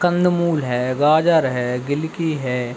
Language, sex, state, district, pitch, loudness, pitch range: Hindi, male, Chhattisgarh, Bilaspur, 150 Hz, -19 LUFS, 125-165 Hz